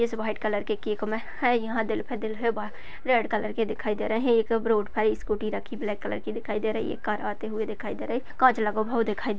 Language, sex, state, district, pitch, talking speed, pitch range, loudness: Hindi, female, Uttar Pradesh, Budaun, 220 Hz, 280 wpm, 215-230 Hz, -27 LUFS